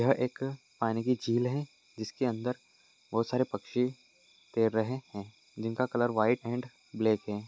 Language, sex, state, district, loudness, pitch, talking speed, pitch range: Hindi, male, Uttar Pradesh, Etah, -32 LUFS, 120 Hz, 160 wpm, 110-125 Hz